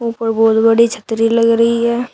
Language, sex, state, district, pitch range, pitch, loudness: Hindi, female, Uttar Pradesh, Shamli, 225-235 Hz, 230 Hz, -13 LUFS